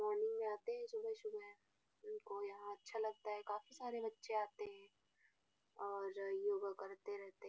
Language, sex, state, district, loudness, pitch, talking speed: Hindi, female, Bihar, Gopalganj, -46 LUFS, 225 Hz, 160 wpm